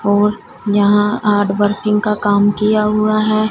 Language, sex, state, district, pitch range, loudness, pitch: Hindi, female, Punjab, Fazilka, 205-215 Hz, -14 LUFS, 210 Hz